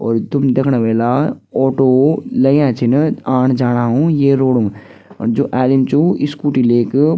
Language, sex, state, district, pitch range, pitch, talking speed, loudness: Garhwali, female, Uttarakhand, Tehri Garhwal, 120-145 Hz, 130 Hz, 165 wpm, -14 LUFS